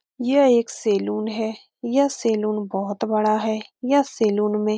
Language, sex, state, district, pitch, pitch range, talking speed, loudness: Hindi, female, Bihar, Saran, 220 Hz, 215-250 Hz, 165 wpm, -22 LUFS